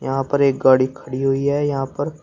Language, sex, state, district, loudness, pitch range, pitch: Hindi, male, Uttar Pradesh, Shamli, -19 LUFS, 135-140 Hz, 135 Hz